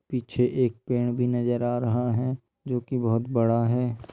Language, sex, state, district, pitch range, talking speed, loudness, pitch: Hindi, male, Bihar, Purnia, 115-125 Hz, 190 wpm, -26 LUFS, 120 Hz